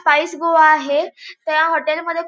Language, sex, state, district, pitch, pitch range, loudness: Marathi, female, Goa, North and South Goa, 320 Hz, 310-335 Hz, -16 LUFS